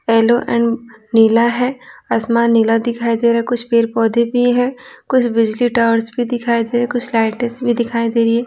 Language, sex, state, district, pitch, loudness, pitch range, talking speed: Hindi, female, Bihar, Patna, 235 Hz, -15 LUFS, 230-240 Hz, 215 wpm